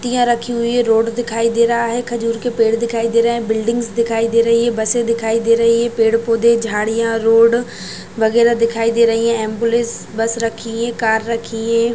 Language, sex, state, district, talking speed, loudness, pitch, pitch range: Hindi, female, Goa, North and South Goa, 210 wpm, -16 LUFS, 230 Hz, 225-235 Hz